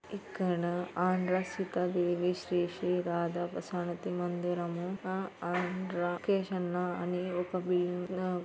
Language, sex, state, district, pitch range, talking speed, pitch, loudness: Telugu, female, Andhra Pradesh, Anantapur, 175-185 Hz, 70 wpm, 180 Hz, -34 LUFS